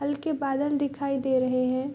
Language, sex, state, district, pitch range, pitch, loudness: Hindi, female, Bihar, Sitamarhi, 260-285 Hz, 275 Hz, -27 LUFS